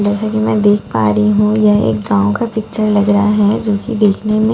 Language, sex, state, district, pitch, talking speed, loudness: Hindi, female, Bihar, Katihar, 205 Hz, 250 wpm, -13 LUFS